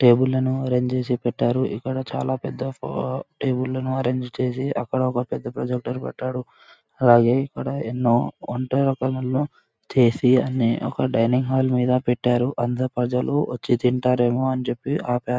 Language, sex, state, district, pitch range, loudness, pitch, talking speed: Telugu, male, Andhra Pradesh, Anantapur, 125-130 Hz, -22 LUFS, 125 Hz, 140 wpm